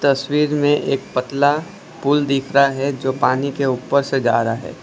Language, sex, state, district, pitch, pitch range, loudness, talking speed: Hindi, male, Gujarat, Valsad, 140 Hz, 130-145 Hz, -18 LUFS, 200 wpm